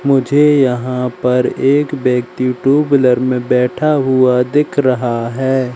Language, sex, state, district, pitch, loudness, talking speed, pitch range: Hindi, male, Madhya Pradesh, Katni, 130 Hz, -14 LUFS, 135 wpm, 125-140 Hz